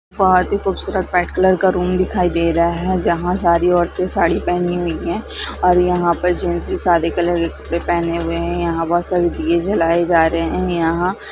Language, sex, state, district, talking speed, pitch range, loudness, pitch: Hindi, female, Andhra Pradesh, Krishna, 195 wpm, 170-180 Hz, -17 LUFS, 175 Hz